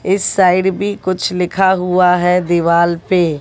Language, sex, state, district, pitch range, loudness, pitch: Hindi, female, Haryana, Jhajjar, 175-190 Hz, -14 LUFS, 180 Hz